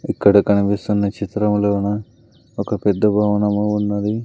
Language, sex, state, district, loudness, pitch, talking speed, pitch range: Telugu, male, Andhra Pradesh, Sri Satya Sai, -18 LUFS, 105 Hz, 100 wpm, 100-105 Hz